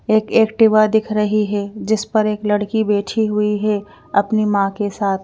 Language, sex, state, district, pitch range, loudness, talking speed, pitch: Hindi, female, Madhya Pradesh, Bhopal, 205-215 Hz, -17 LUFS, 195 wpm, 210 Hz